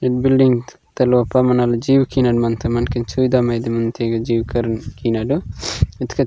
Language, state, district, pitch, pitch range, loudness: Gondi, Chhattisgarh, Sukma, 120 Hz, 115-125 Hz, -18 LUFS